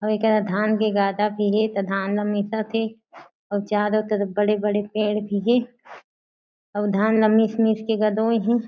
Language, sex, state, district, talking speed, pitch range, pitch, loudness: Chhattisgarhi, female, Chhattisgarh, Jashpur, 180 wpm, 205-220 Hz, 215 Hz, -22 LUFS